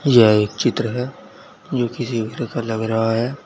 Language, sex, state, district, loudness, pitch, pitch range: Hindi, male, Uttar Pradesh, Saharanpur, -20 LUFS, 120 Hz, 115-130 Hz